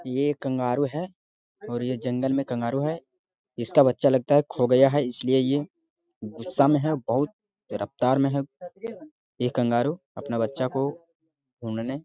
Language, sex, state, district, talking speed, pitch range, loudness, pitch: Hindi, male, Bihar, Jamui, 155 wpm, 125-160 Hz, -25 LUFS, 135 Hz